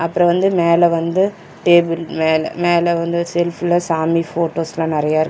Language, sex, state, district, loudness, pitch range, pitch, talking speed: Tamil, male, Tamil Nadu, Chennai, -16 LUFS, 165-175 Hz, 170 Hz, 145 wpm